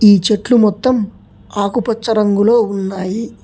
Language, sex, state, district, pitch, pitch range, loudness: Telugu, male, Telangana, Hyderabad, 215 Hz, 200-230 Hz, -14 LUFS